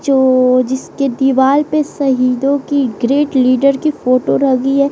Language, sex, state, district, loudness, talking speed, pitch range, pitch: Hindi, female, Bihar, West Champaran, -13 LUFS, 145 wpm, 255-280 Hz, 270 Hz